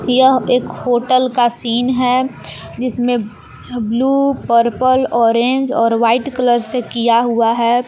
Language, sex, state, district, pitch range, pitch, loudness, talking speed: Hindi, female, Jharkhand, Palamu, 235-255 Hz, 245 Hz, -15 LUFS, 130 wpm